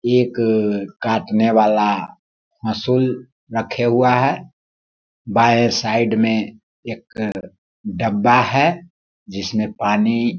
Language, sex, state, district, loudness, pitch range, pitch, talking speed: Hindi, male, Bihar, Sitamarhi, -18 LUFS, 105-120 Hz, 115 Hz, 90 wpm